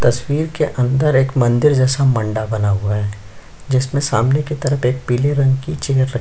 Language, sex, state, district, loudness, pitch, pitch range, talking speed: Hindi, male, Chhattisgarh, Sukma, -17 LUFS, 130 Hz, 115-140 Hz, 185 wpm